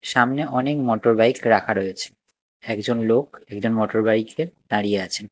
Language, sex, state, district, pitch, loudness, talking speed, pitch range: Bengali, male, Odisha, Nuapada, 110 Hz, -21 LUFS, 145 wpm, 105-125 Hz